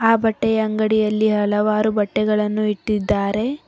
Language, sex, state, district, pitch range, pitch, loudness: Kannada, female, Karnataka, Bangalore, 210-220 Hz, 215 Hz, -19 LUFS